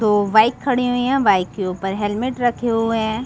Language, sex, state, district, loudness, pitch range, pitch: Hindi, female, Chhattisgarh, Bastar, -18 LUFS, 205-245 Hz, 225 Hz